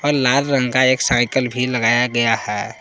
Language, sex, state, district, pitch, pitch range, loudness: Hindi, male, Jharkhand, Palamu, 125 Hz, 120-135 Hz, -17 LUFS